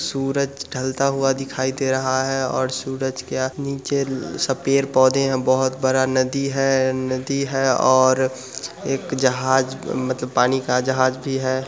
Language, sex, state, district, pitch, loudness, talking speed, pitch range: Hindi, male, Bihar, Muzaffarpur, 130 Hz, -21 LUFS, 150 wpm, 130-135 Hz